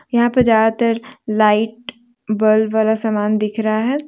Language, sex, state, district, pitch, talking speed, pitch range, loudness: Hindi, female, Jharkhand, Deoghar, 220 Hz, 145 wpm, 215-240 Hz, -16 LUFS